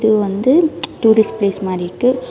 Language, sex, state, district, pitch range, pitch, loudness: Tamil, female, Karnataka, Bangalore, 195-250 Hz, 220 Hz, -15 LUFS